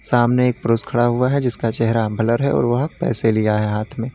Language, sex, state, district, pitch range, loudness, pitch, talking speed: Hindi, male, Uttar Pradesh, Lalitpur, 115-125 Hz, -18 LUFS, 120 Hz, 245 wpm